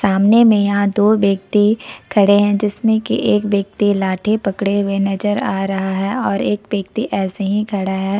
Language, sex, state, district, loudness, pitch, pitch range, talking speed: Hindi, female, Jharkhand, Ranchi, -16 LUFS, 200 Hz, 195-210 Hz, 185 wpm